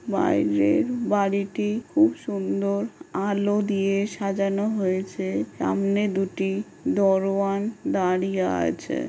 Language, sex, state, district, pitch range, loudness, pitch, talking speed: Bengali, female, West Bengal, Jhargram, 190-205 Hz, -24 LUFS, 195 Hz, 90 wpm